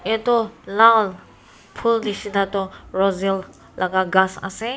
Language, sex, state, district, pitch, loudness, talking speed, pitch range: Nagamese, female, Nagaland, Kohima, 200 Hz, -20 LUFS, 100 wpm, 190-225 Hz